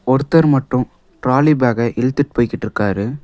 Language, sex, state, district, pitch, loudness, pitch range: Tamil, male, Tamil Nadu, Nilgiris, 125 Hz, -16 LUFS, 115-140 Hz